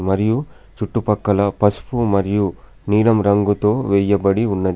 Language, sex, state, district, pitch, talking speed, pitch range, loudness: Telugu, male, Telangana, Adilabad, 100 Hz, 100 wpm, 100-110 Hz, -18 LUFS